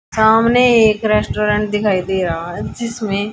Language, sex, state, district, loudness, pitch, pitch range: Hindi, female, Haryana, Charkhi Dadri, -15 LUFS, 210 Hz, 200-220 Hz